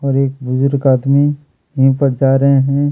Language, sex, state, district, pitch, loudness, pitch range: Hindi, male, Chhattisgarh, Kabirdham, 135 Hz, -14 LUFS, 135-140 Hz